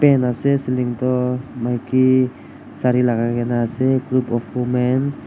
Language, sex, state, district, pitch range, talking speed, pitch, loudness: Nagamese, male, Nagaland, Dimapur, 120-130 Hz, 125 wpm, 125 Hz, -19 LUFS